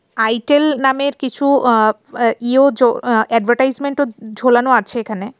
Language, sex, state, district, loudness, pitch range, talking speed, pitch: Bengali, female, Tripura, West Tripura, -15 LUFS, 230-270 Hz, 145 wpm, 245 Hz